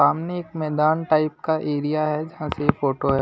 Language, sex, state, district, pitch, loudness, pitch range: Hindi, male, Delhi, New Delhi, 155 Hz, -23 LUFS, 145-160 Hz